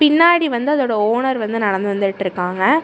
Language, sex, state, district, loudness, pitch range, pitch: Tamil, female, Tamil Nadu, Namakkal, -17 LUFS, 200-295 Hz, 225 Hz